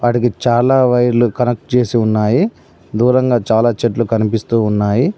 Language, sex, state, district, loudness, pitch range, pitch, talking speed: Telugu, male, Telangana, Mahabubabad, -14 LUFS, 115-125 Hz, 120 Hz, 125 wpm